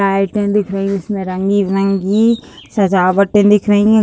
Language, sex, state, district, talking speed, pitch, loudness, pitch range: Hindi, female, Uttar Pradesh, Deoria, 150 wpm, 200 Hz, -14 LUFS, 195-210 Hz